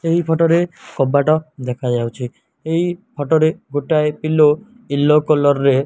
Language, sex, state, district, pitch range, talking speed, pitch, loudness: Odia, male, Odisha, Malkangiri, 140-165 Hz, 155 wpm, 150 Hz, -17 LUFS